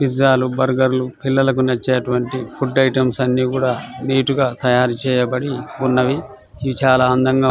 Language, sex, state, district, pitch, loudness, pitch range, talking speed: Telugu, male, Telangana, Nalgonda, 130 Hz, -17 LUFS, 125-135 Hz, 160 wpm